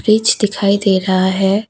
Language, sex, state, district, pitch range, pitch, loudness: Hindi, female, Assam, Kamrup Metropolitan, 190-210 Hz, 200 Hz, -14 LUFS